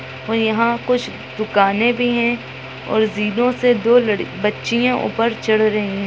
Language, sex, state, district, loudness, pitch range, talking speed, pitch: Hindi, female, Bihar, Gaya, -18 LUFS, 215-240 Hz, 150 wpm, 225 Hz